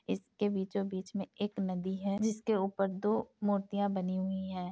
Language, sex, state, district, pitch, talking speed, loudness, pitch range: Hindi, female, Uttar Pradesh, Etah, 195 Hz, 180 wpm, -34 LUFS, 190-205 Hz